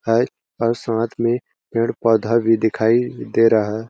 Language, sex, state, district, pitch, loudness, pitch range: Hindi, male, Chhattisgarh, Balrampur, 115 Hz, -19 LUFS, 110-115 Hz